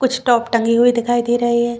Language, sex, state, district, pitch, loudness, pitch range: Hindi, female, Chhattisgarh, Bilaspur, 240 Hz, -16 LUFS, 235-240 Hz